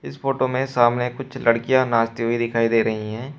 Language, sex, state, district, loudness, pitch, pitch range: Hindi, male, Uttar Pradesh, Shamli, -21 LUFS, 120 Hz, 115-130 Hz